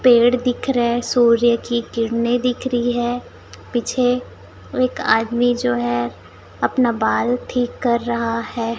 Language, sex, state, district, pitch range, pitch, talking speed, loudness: Hindi, female, Chhattisgarh, Raipur, 230-245 Hz, 240 Hz, 145 wpm, -19 LUFS